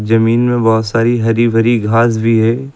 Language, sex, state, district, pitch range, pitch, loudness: Hindi, male, Uttar Pradesh, Lucknow, 115-120 Hz, 115 Hz, -12 LUFS